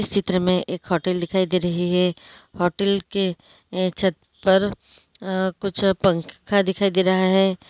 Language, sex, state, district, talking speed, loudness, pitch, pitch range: Hindi, female, Uttarakhand, Uttarkashi, 165 wpm, -21 LUFS, 185 Hz, 180-195 Hz